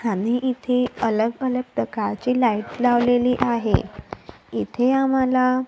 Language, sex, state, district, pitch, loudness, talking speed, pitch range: Marathi, female, Maharashtra, Gondia, 250 Hz, -21 LUFS, 105 wpm, 240-255 Hz